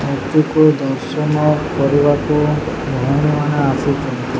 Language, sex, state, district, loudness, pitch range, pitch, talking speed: Odia, male, Odisha, Sambalpur, -16 LUFS, 140-150 Hz, 145 Hz, 70 wpm